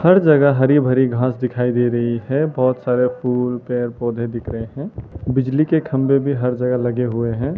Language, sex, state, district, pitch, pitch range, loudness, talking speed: Hindi, male, Arunachal Pradesh, Lower Dibang Valley, 125 Hz, 120-135 Hz, -18 LUFS, 205 wpm